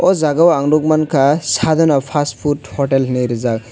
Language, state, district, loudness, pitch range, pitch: Kokborok, Tripura, West Tripura, -15 LUFS, 130-155 Hz, 145 Hz